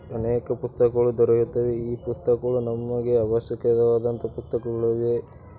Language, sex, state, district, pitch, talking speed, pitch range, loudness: Kannada, male, Karnataka, Bijapur, 120 Hz, 95 wpm, 115-120 Hz, -24 LUFS